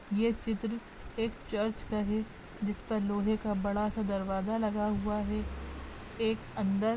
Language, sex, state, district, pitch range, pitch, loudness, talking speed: Hindi, female, Maharashtra, Nagpur, 205-220 Hz, 210 Hz, -33 LUFS, 155 wpm